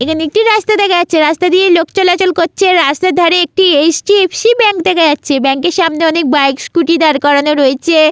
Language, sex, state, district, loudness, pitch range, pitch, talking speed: Bengali, female, West Bengal, Malda, -10 LUFS, 305-370 Hz, 335 Hz, 185 wpm